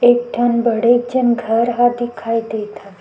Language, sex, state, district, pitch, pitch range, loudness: Chhattisgarhi, female, Chhattisgarh, Sukma, 240 Hz, 225-240 Hz, -16 LUFS